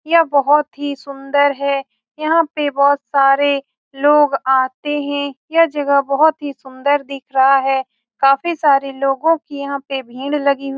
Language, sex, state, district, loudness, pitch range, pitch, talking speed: Hindi, female, Bihar, Saran, -16 LUFS, 275-290 Hz, 280 Hz, 160 wpm